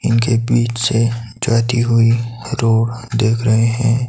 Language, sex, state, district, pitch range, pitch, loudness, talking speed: Hindi, male, Himachal Pradesh, Shimla, 115-120 Hz, 115 Hz, -16 LUFS, 130 wpm